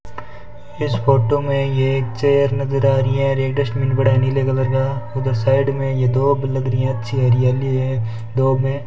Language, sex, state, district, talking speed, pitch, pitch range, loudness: Hindi, male, Rajasthan, Bikaner, 205 wpm, 130 Hz, 125-135 Hz, -18 LUFS